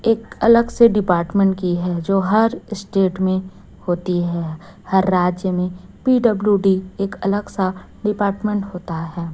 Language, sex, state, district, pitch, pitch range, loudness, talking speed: Hindi, female, Chhattisgarh, Raipur, 190 Hz, 180-210 Hz, -19 LUFS, 140 wpm